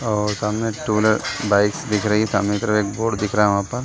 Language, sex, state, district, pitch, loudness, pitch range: Hindi, male, Uttar Pradesh, Jalaun, 105 Hz, -20 LUFS, 105-110 Hz